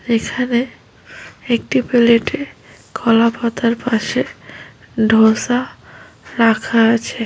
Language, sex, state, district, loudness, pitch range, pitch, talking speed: Bengali, female, West Bengal, Paschim Medinipur, -16 LUFS, 225-245 Hz, 230 Hz, 80 wpm